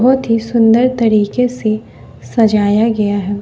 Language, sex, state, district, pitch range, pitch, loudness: Hindi, female, Bihar, West Champaran, 205-235 Hz, 220 Hz, -13 LUFS